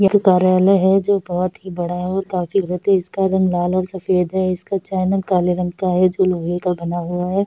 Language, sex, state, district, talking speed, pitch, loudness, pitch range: Hindi, female, Uttar Pradesh, Hamirpur, 235 wpm, 185 Hz, -18 LUFS, 180-190 Hz